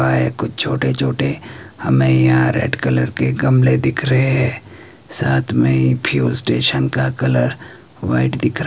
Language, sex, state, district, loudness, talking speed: Hindi, male, Himachal Pradesh, Shimla, -16 LUFS, 165 wpm